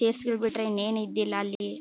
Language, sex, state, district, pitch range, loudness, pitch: Kannada, female, Karnataka, Bellary, 205-225 Hz, -28 LUFS, 215 Hz